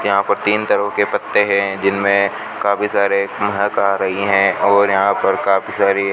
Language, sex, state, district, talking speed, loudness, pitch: Hindi, male, Rajasthan, Bikaner, 195 wpm, -16 LUFS, 100 Hz